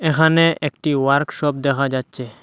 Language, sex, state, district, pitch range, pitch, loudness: Bengali, male, Assam, Hailakandi, 135-155 Hz, 145 Hz, -18 LUFS